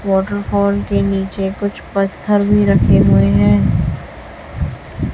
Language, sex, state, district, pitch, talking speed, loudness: Hindi, female, Chhattisgarh, Raipur, 195 Hz, 105 wpm, -15 LUFS